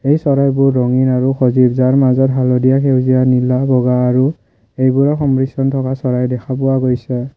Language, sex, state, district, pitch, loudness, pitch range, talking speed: Assamese, male, Assam, Kamrup Metropolitan, 130 Hz, -14 LUFS, 125-135 Hz, 165 wpm